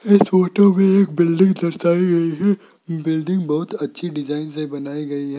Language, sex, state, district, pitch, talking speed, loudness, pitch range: Hindi, male, Rajasthan, Jaipur, 170 Hz, 180 wpm, -18 LUFS, 150-190 Hz